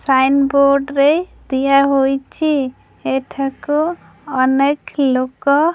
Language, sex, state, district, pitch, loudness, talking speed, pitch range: Odia, female, Odisha, Khordha, 275 Hz, -16 LUFS, 75 wpm, 265-290 Hz